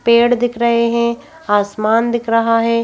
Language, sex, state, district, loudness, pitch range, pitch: Hindi, female, Madhya Pradesh, Bhopal, -15 LUFS, 230-235 Hz, 235 Hz